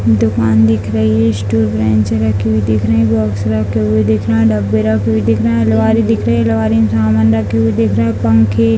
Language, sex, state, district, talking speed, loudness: Hindi, female, Bihar, Jahanabad, 260 wpm, -13 LUFS